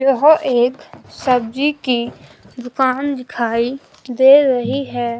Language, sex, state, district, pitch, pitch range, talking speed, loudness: Hindi, female, Himachal Pradesh, Shimla, 260 Hz, 245-275 Hz, 105 wpm, -16 LUFS